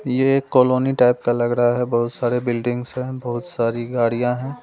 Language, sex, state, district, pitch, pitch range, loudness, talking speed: Hindi, male, Delhi, New Delhi, 125 Hz, 120-130 Hz, -20 LUFS, 195 wpm